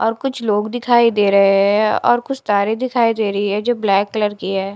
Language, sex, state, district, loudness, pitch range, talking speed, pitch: Hindi, female, Bihar, Katihar, -16 LUFS, 200-235 Hz, 240 wpm, 215 Hz